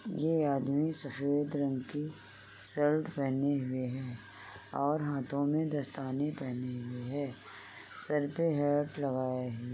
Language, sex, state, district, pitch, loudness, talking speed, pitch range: Hindi, female, Uttar Pradesh, Etah, 140 Hz, -34 LUFS, 135 wpm, 125-145 Hz